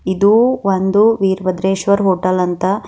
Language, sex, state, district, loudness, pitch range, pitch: Kannada, female, Karnataka, Bidar, -14 LUFS, 185-200 Hz, 190 Hz